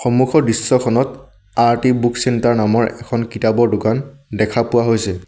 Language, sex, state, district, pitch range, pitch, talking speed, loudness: Assamese, male, Assam, Sonitpur, 110-125 Hz, 120 Hz, 125 wpm, -16 LUFS